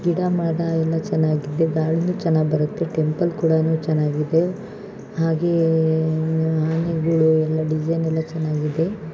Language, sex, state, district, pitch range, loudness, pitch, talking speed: Kannada, female, Karnataka, Shimoga, 155-165 Hz, -21 LUFS, 160 Hz, 105 wpm